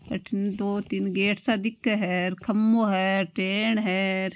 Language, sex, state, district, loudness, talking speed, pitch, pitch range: Marwari, female, Rajasthan, Nagaur, -25 LUFS, 190 wpm, 200 Hz, 190-220 Hz